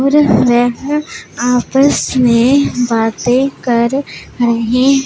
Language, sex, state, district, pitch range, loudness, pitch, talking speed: Hindi, female, Punjab, Pathankot, 240-275 Hz, -13 LUFS, 250 Hz, 85 wpm